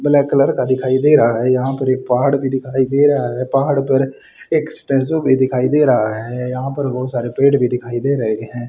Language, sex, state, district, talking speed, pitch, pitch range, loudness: Hindi, male, Haryana, Charkhi Dadri, 235 wpm, 130 Hz, 125-140 Hz, -16 LUFS